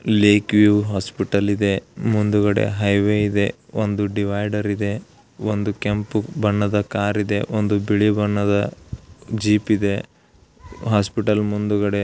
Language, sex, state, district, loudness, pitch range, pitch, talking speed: Kannada, male, Karnataka, Belgaum, -20 LUFS, 100-105 Hz, 105 Hz, 45 wpm